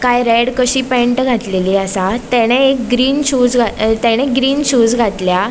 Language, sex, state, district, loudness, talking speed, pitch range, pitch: Konkani, female, Goa, North and South Goa, -13 LUFS, 140 wpm, 225-255 Hz, 245 Hz